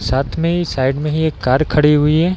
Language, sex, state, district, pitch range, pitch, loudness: Hindi, male, Bihar, East Champaran, 135-160 Hz, 150 Hz, -16 LUFS